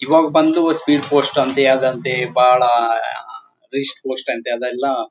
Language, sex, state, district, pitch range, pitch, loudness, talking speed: Kannada, male, Karnataka, Bellary, 125-160 Hz, 135 Hz, -17 LUFS, 130 wpm